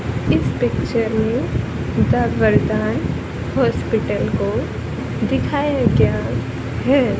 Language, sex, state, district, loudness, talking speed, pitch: Hindi, male, Haryana, Charkhi Dadri, -19 LUFS, 85 wpm, 125 Hz